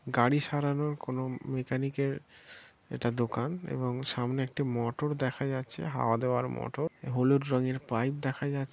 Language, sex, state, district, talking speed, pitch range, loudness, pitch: Bengali, male, West Bengal, Dakshin Dinajpur, 145 wpm, 125-140 Hz, -31 LUFS, 130 Hz